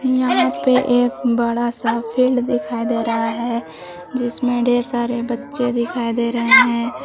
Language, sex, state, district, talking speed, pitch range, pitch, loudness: Hindi, female, Jharkhand, Palamu, 155 wpm, 235-245 Hz, 240 Hz, -18 LUFS